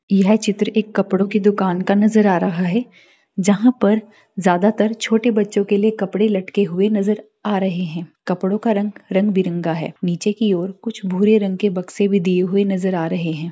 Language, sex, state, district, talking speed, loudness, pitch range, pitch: Hindi, female, Bihar, Jahanabad, 200 wpm, -18 LUFS, 185-210 Hz, 200 Hz